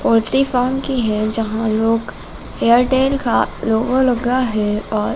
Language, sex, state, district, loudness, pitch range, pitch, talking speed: Hindi, male, Madhya Pradesh, Dhar, -17 LUFS, 220-255 Hz, 230 Hz, 140 wpm